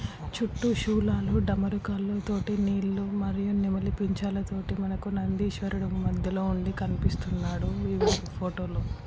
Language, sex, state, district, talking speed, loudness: Telugu, male, Telangana, Karimnagar, 105 wpm, -29 LUFS